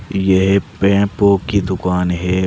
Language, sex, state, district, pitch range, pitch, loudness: Hindi, male, Uttar Pradesh, Saharanpur, 90-100 Hz, 95 Hz, -15 LUFS